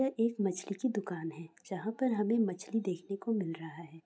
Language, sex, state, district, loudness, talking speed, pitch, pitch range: Hindi, female, Bihar, Saran, -35 LUFS, 220 wpm, 195 Hz, 170-225 Hz